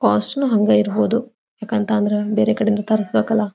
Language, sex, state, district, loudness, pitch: Kannada, female, Karnataka, Belgaum, -18 LUFS, 210 Hz